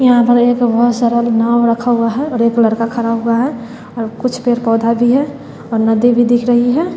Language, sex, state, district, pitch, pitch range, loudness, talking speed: Hindi, female, Bihar, West Champaran, 235 Hz, 230-245 Hz, -13 LUFS, 225 wpm